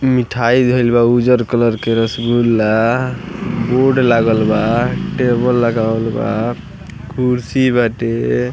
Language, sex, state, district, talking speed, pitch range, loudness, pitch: Bhojpuri, male, Bihar, East Champaran, 105 wpm, 115-125 Hz, -15 LUFS, 120 Hz